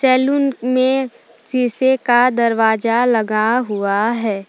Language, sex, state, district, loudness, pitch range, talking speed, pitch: Hindi, female, Jharkhand, Palamu, -16 LUFS, 225-255 Hz, 105 wpm, 240 Hz